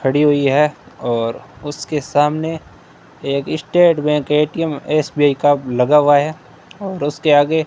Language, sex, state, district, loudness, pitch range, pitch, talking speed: Hindi, male, Rajasthan, Bikaner, -16 LUFS, 145-155 Hz, 150 Hz, 150 wpm